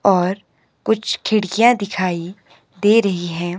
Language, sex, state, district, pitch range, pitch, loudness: Hindi, male, Himachal Pradesh, Shimla, 180-215 Hz, 195 Hz, -18 LUFS